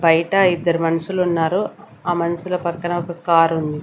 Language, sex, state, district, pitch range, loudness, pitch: Telugu, female, Andhra Pradesh, Sri Satya Sai, 165-175 Hz, -19 LUFS, 170 Hz